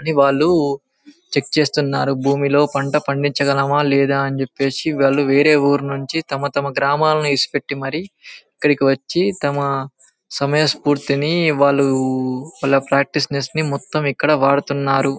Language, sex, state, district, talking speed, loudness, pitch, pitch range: Telugu, male, Telangana, Karimnagar, 125 wpm, -17 LUFS, 140 Hz, 140-150 Hz